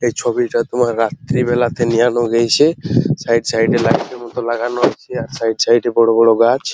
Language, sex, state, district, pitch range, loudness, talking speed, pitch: Bengali, male, West Bengal, Jalpaiguri, 115-125 Hz, -15 LUFS, 275 wpm, 120 Hz